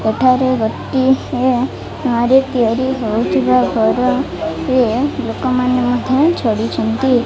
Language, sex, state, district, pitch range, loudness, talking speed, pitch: Odia, female, Odisha, Malkangiri, 230-260 Hz, -15 LUFS, 85 wpm, 250 Hz